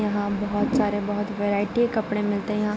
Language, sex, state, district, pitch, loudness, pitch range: Hindi, female, Bihar, Darbhanga, 205 Hz, -24 LUFS, 205-210 Hz